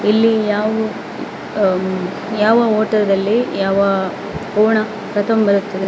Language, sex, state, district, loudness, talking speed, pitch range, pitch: Kannada, female, Karnataka, Dakshina Kannada, -16 LUFS, 90 wpm, 195-220 Hz, 210 Hz